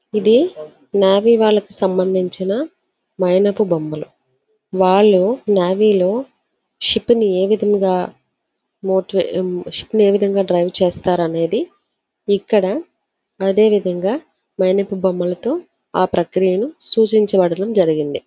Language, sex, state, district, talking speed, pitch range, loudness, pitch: Telugu, female, Andhra Pradesh, Visakhapatnam, 90 wpm, 185-215 Hz, -17 LUFS, 195 Hz